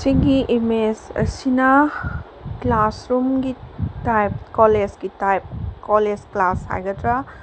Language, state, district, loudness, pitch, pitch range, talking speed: Manipuri, Manipur, Imphal West, -20 LUFS, 225 Hz, 210-260 Hz, 95 wpm